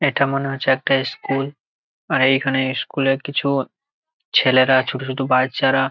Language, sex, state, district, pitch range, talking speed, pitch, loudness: Bengali, male, West Bengal, Jalpaiguri, 130-140 Hz, 130 wpm, 135 Hz, -19 LUFS